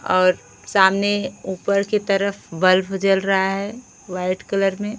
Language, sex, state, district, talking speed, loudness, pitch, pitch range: Hindi, female, Odisha, Khordha, 145 wpm, -20 LUFS, 195 Hz, 190-200 Hz